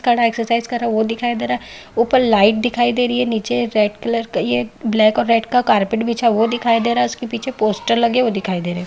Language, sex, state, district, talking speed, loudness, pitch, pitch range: Hindi, female, Bihar, Madhepura, 285 wpm, -17 LUFS, 230 Hz, 215-240 Hz